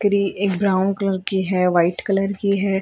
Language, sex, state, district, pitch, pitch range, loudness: Hindi, female, Maharashtra, Mumbai Suburban, 195 Hz, 185-200 Hz, -20 LUFS